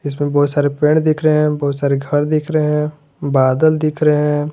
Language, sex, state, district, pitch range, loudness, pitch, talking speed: Hindi, male, Jharkhand, Garhwa, 145-155 Hz, -16 LUFS, 150 Hz, 225 wpm